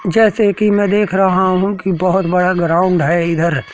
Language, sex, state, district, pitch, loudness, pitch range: Hindi, male, Madhya Pradesh, Katni, 185 Hz, -14 LUFS, 175-200 Hz